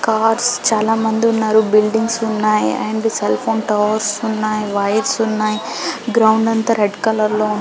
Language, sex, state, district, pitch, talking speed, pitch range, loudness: Telugu, female, Telangana, Karimnagar, 220 Hz, 140 wpm, 215-225 Hz, -16 LUFS